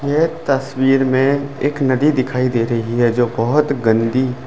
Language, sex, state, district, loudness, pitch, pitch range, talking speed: Hindi, male, Delhi, New Delhi, -16 LUFS, 130 Hz, 120-140 Hz, 175 wpm